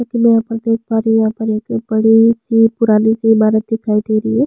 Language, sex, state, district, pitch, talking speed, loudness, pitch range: Hindi, female, Chhattisgarh, Sukma, 225 Hz, 240 wpm, -14 LUFS, 220-230 Hz